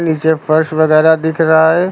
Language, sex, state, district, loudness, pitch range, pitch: Hindi, male, Uttar Pradesh, Lucknow, -12 LUFS, 155-160 Hz, 160 Hz